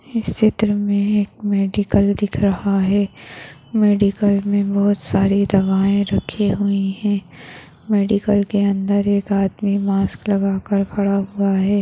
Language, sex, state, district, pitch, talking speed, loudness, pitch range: Hindi, female, Maharashtra, Solapur, 200 Hz, 130 wpm, -18 LUFS, 195-205 Hz